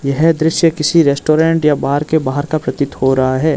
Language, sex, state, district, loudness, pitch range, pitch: Hindi, male, Arunachal Pradesh, Lower Dibang Valley, -14 LUFS, 140-160 Hz, 155 Hz